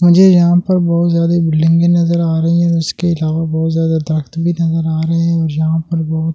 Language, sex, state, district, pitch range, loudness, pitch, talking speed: Hindi, male, Delhi, New Delhi, 160-170 Hz, -13 LUFS, 165 Hz, 225 wpm